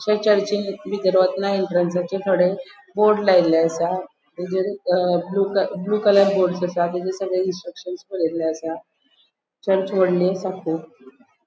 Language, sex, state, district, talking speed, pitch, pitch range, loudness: Konkani, female, Goa, North and South Goa, 135 wpm, 185 Hz, 175-195 Hz, -21 LUFS